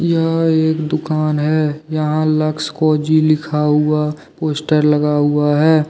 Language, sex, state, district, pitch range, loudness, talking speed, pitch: Hindi, male, Jharkhand, Deoghar, 150-155 Hz, -16 LUFS, 130 wpm, 155 Hz